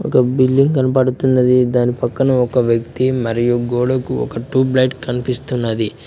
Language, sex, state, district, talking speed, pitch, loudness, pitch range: Telugu, male, Telangana, Mahabubabad, 130 wpm, 125 Hz, -16 LUFS, 120-130 Hz